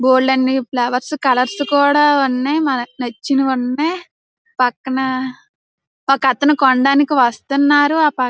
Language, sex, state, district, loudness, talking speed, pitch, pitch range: Telugu, female, Andhra Pradesh, Srikakulam, -15 LUFS, 115 wpm, 265 Hz, 255-290 Hz